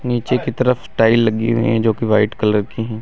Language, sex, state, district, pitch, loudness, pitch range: Hindi, male, Uttar Pradesh, Lucknow, 115 Hz, -17 LUFS, 110-120 Hz